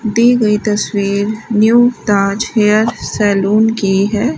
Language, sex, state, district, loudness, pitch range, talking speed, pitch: Hindi, female, Rajasthan, Bikaner, -13 LUFS, 200-220 Hz, 125 wpm, 215 Hz